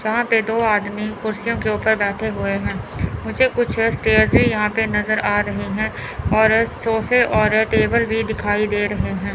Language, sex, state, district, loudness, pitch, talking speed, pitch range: Hindi, male, Chandigarh, Chandigarh, -19 LUFS, 215 Hz, 185 wpm, 200-220 Hz